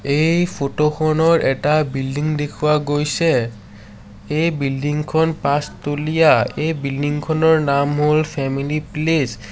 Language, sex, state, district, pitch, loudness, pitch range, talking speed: Assamese, male, Assam, Sonitpur, 150 Hz, -18 LUFS, 140-155 Hz, 120 wpm